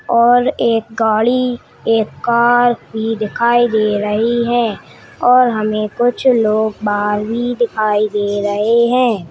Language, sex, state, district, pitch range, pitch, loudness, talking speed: Hindi, male, Uttarakhand, Tehri Garhwal, 215-240 Hz, 225 Hz, -15 LUFS, 125 wpm